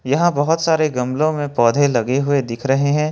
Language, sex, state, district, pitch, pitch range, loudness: Hindi, male, Jharkhand, Ranchi, 145 Hz, 130-155 Hz, -17 LUFS